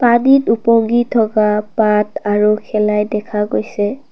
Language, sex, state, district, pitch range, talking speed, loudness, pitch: Assamese, female, Assam, Kamrup Metropolitan, 210-235 Hz, 115 wpm, -15 LUFS, 215 Hz